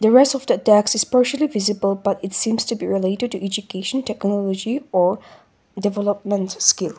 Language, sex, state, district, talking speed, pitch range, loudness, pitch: English, female, Nagaland, Kohima, 165 wpm, 195-230 Hz, -20 LUFS, 205 Hz